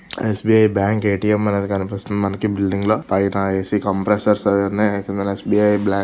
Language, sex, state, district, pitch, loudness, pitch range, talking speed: Telugu, male, Andhra Pradesh, Visakhapatnam, 100 Hz, -18 LUFS, 100-105 Hz, 220 wpm